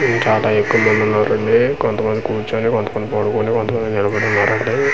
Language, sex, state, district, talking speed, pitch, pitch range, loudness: Telugu, male, Andhra Pradesh, Manyam, 155 wpm, 110 Hz, 105-110 Hz, -16 LUFS